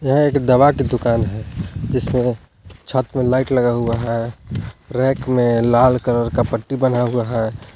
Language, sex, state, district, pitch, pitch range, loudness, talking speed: Hindi, male, Jharkhand, Palamu, 120 Hz, 115-130 Hz, -18 LUFS, 160 wpm